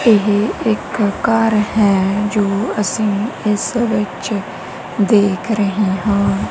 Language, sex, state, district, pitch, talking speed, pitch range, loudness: Punjabi, female, Punjab, Kapurthala, 210 Hz, 100 wpm, 200-215 Hz, -16 LUFS